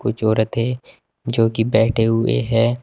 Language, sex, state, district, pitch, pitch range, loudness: Hindi, male, Uttar Pradesh, Saharanpur, 115 Hz, 110-120 Hz, -18 LUFS